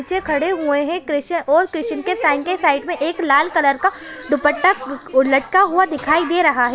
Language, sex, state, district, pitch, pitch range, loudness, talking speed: Hindi, female, Bihar, Saran, 305 Hz, 285-355 Hz, -17 LUFS, 195 wpm